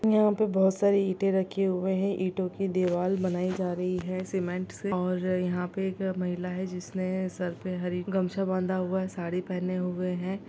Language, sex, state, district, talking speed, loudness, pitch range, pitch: Hindi, female, Chhattisgarh, Bilaspur, 200 wpm, -29 LUFS, 180-190 Hz, 185 Hz